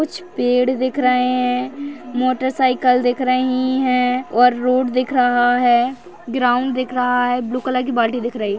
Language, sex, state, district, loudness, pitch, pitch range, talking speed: Hindi, female, Maharashtra, Sindhudurg, -18 LUFS, 250 Hz, 245-255 Hz, 175 wpm